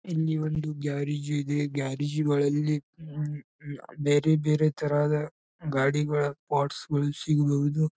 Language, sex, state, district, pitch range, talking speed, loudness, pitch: Kannada, male, Karnataka, Bijapur, 145-155 Hz, 115 wpm, -27 LUFS, 145 Hz